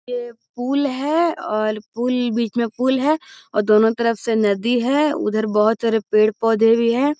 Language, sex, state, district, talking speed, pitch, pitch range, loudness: Magahi, female, Bihar, Gaya, 190 wpm, 235 Hz, 220-260 Hz, -19 LUFS